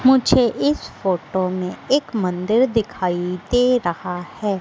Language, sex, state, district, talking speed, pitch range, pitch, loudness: Hindi, female, Madhya Pradesh, Katni, 130 wpm, 180-245 Hz, 195 Hz, -20 LUFS